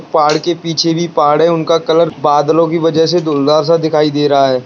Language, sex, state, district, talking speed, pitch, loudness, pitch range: Hindi, male, Bihar, Bhagalpur, 230 wpm, 160 Hz, -12 LUFS, 150-165 Hz